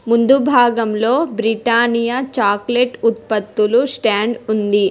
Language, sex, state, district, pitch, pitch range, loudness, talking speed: Telugu, female, Telangana, Hyderabad, 230 Hz, 220-245 Hz, -16 LUFS, 85 wpm